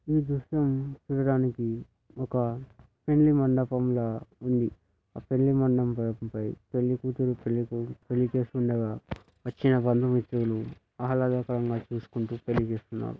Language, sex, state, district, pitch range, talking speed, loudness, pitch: Telugu, male, Telangana, Karimnagar, 115-130 Hz, 110 wpm, -28 LUFS, 125 Hz